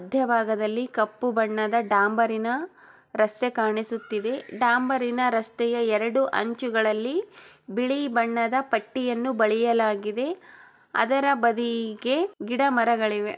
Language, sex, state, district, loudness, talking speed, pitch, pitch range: Kannada, female, Karnataka, Chamarajanagar, -25 LUFS, 80 wpm, 235 Hz, 220-260 Hz